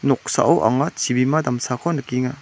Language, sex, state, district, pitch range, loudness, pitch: Garo, male, Meghalaya, West Garo Hills, 125-140 Hz, -20 LUFS, 125 Hz